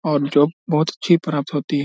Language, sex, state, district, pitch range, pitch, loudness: Hindi, male, Bihar, Samastipur, 145-165 Hz, 150 Hz, -19 LUFS